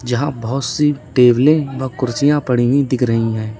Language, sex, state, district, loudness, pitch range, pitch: Hindi, male, Uttar Pradesh, Lalitpur, -16 LUFS, 120-140 Hz, 130 Hz